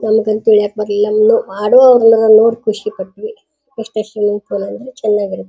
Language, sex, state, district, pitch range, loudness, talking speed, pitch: Kannada, female, Karnataka, Dharwad, 210-255 Hz, -12 LUFS, 130 wpm, 220 Hz